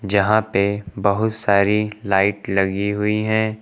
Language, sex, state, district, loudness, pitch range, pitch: Hindi, male, Uttar Pradesh, Lucknow, -19 LUFS, 100-105 Hz, 100 Hz